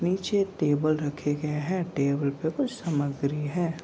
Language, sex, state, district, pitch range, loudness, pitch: Hindi, male, Bihar, Kishanganj, 145-175 Hz, -28 LUFS, 155 Hz